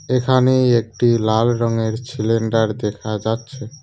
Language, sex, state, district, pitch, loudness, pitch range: Bengali, male, West Bengal, Cooch Behar, 115 Hz, -18 LUFS, 110-125 Hz